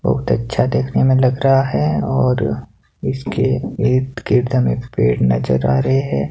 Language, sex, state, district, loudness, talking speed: Hindi, male, Himachal Pradesh, Shimla, -17 LUFS, 150 wpm